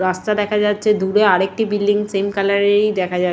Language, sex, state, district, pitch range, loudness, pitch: Bengali, female, West Bengal, Purulia, 190-210 Hz, -17 LUFS, 205 Hz